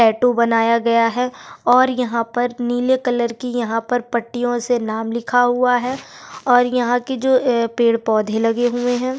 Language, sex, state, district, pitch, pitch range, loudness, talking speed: Hindi, female, Uttarakhand, Tehri Garhwal, 245 Hz, 230-250 Hz, -18 LUFS, 170 wpm